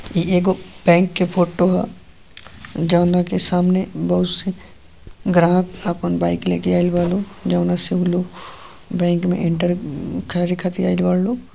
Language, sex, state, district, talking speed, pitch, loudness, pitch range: Bhojpuri, female, Uttar Pradesh, Gorakhpur, 155 wpm, 180 Hz, -19 LUFS, 170-185 Hz